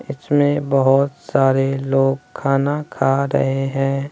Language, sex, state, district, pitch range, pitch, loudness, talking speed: Hindi, male, Bihar, West Champaran, 135-140 Hz, 135 Hz, -18 LUFS, 115 wpm